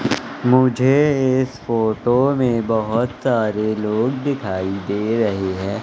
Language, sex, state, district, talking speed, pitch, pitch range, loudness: Hindi, male, Madhya Pradesh, Katni, 115 wpm, 115 Hz, 105-130 Hz, -19 LUFS